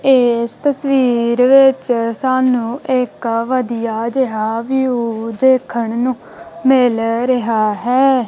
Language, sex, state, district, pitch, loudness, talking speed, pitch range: Punjabi, female, Punjab, Kapurthala, 245 Hz, -15 LUFS, 95 wpm, 230-260 Hz